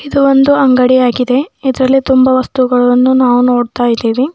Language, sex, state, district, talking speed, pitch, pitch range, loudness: Kannada, female, Karnataka, Bidar, 140 wpm, 255 Hz, 245-270 Hz, -10 LUFS